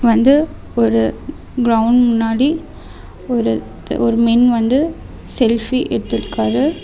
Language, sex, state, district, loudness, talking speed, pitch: Tamil, female, Tamil Nadu, Namakkal, -16 LUFS, 90 wpm, 230 Hz